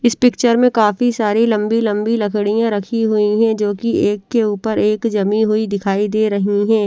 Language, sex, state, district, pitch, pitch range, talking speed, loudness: Hindi, female, Bihar, Katihar, 215 Hz, 210-230 Hz, 200 wpm, -16 LUFS